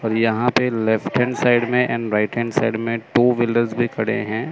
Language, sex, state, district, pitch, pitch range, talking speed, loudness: Hindi, male, Chandigarh, Chandigarh, 115 Hz, 110-120 Hz, 225 wpm, -19 LUFS